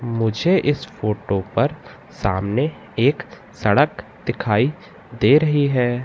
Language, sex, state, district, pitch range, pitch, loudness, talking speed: Hindi, male, Madhya Pradesh, Katni, 105-145 Hz, 125 Hz, -20 LUFS, 110 wpm